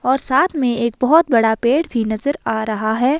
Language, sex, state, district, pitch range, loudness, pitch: Hindi, female, Himachal Pradesh, Shimla, 225-275 Hz, -17 LUFS, 250 Hz